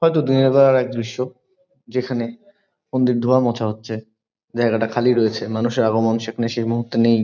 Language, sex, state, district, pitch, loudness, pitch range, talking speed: Bengali, male, West Bengal, Kolkata, 120 Hz, -19 LUFS, 115-130 Hz, 155 wpm